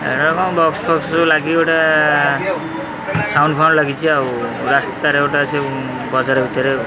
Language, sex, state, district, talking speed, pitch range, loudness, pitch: Odia, male, Odisha, Khordha, 150 wpm, 135-160 Hz, -15 LUFS, 150 Hz